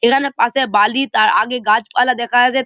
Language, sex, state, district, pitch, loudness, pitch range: Bengali, male, West Bengal, Malda, 250 Hz, -14 LUFS, 235-265 Hz